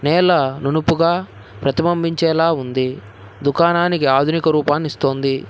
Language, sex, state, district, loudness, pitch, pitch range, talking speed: Telugu, male, Telangana, Hyderabad, -17 LUFS, 155 Hz, 135-165 Hz, 85 wpm